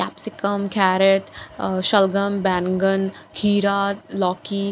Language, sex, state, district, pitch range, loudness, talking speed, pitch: Hindi, female, Bihar, Katihar, 190-200 Hz, -20 LUFS, 115 wpm, 200 Hz